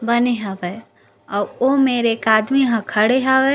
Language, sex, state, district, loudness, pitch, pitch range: Chhattisgarhi, female, Chhattisgarh, Raigarh, -18 LUFS, 235 Hz, 215-265 Hz